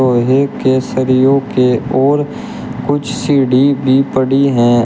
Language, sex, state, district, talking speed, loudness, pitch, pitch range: Hindi, male, Uttar Pradesh, Shamli, 125 wpm, -13 LUFS, 130 Hz, 130-140 Hz